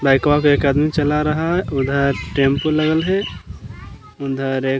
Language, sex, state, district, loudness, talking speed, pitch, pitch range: Hindi, male, Bihar, Gaya, -18 LUFS, 150 wpm, 140 Hz, 135-150 Hz